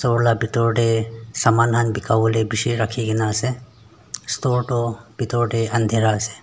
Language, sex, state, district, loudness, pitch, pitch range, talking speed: Nagamese, male, Nagaland, Dimapur, -20 LUFS, 115 Hz, 110-120 Hz, 170 wpm